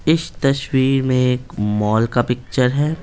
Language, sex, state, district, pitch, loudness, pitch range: Hindi, male, Bihar, Patna, 130 Hz, -18 LUFS, 125-135 Hz